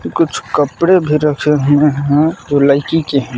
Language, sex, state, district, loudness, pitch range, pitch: Hindi, male, Jharkhand, Palamu, -13 LUFS, 140-155 Hz, 145 Hz